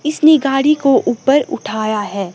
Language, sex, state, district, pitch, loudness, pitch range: Hindi, female, Himachal Pradesh, Shimla, 270 Hz, -14 LUFS, 215-300 Hz